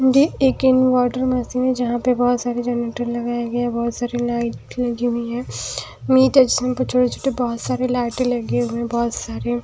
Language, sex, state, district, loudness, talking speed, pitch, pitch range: Hindi, female, Haryana, Jhajjar, -20 LUFS, 185 wpm, 245 Hz, 240-255 Hz